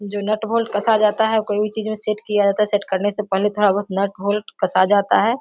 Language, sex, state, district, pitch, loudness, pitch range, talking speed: Hindi, female, Bihar, Samastipur, 205 Hz, -19 LUFS, 200-215 Hz, 265 wpm